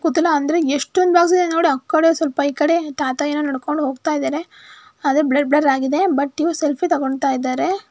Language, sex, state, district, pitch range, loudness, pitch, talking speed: Kannada, female, Karnataka, Mysore, 285-335 Hz, -18 LUFS, 305 Hz, 180 wpm